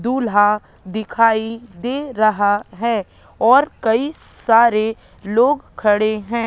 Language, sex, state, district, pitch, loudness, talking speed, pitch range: Hindi, female, Madhya Pradesh, Katni, 225 Hz, -17 LUFS, 100 wpm, 215-235 Hz